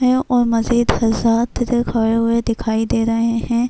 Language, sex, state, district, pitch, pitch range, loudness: Urdu, female, Bihar, Kishanganj, 230 Hz, 230-240 Hz, -17 LUFS